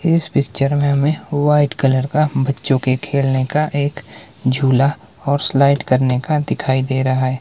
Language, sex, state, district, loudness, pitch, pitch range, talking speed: Hindi, male, Himachal Pradesh, Shimla, -17 LUFS, 140 Hz, 130-145 Hz, 170 wpm